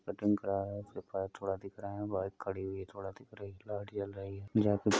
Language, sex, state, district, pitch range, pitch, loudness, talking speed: Hindi, male, Uttar Pradesh, Budaun, 95-105 Hz, 100 Hz, -38 LUFS, 205 wpm